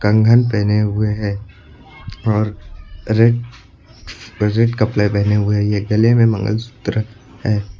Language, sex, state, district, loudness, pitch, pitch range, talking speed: Hindi, male, Uttar Pradesh, Lucknow, -17 LUFS, 105 Hz, 105-110 Hz, 125 wpm